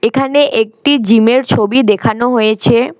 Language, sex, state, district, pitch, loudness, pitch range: Bengali, female, West Bengal, Alipurduar, 235 Hz, -11 LUFS, 220-265 Hz